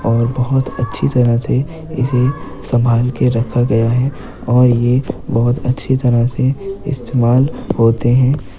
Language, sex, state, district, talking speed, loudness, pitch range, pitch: Hindi, male, Uttar Pradesh, Jyotiba Phule Nagar, 140 wpm, -15 LUFS, 120-130 Hz, 125 Hz